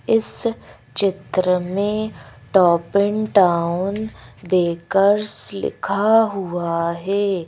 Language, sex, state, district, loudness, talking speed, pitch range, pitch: Hindi, female, Madhya Pradesh, Bhopal, -19 LUFS, 80 wpm, 175-210 Hz, 195 Hz